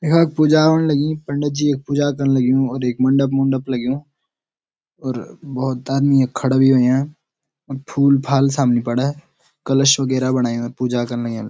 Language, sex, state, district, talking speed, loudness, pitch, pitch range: Garhwali, male, Uttarakhand, Uttarkashi, 165 wpm, -18 LUFS, 135 Hz, 130-145 Hz